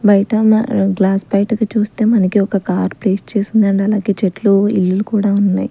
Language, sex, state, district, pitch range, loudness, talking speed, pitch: Telugu, female, Andhra Pradesh, Sri Satya Sai, 195-215 Hz, -15 LUFS, 170 wpm, 200 Hz